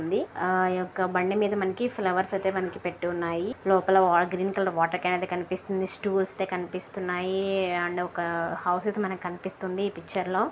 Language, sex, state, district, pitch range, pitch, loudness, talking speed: Telugu, female, Andhra Pradesh, Anantapur, 180-190 Hz, 185 Hz, -27 LUFS, 180 wpm